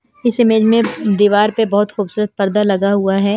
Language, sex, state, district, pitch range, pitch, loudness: Hindi, female, Himachal Pradesh, Shimla, 200-225 Hz, 210 Hz, -14 LUFS